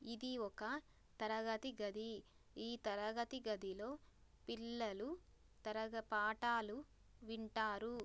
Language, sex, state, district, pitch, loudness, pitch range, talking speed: Telugu, female, Telangana, Karimnagar, 220 Hz, -45 LUFS, 215-235 Hz, 80 wpm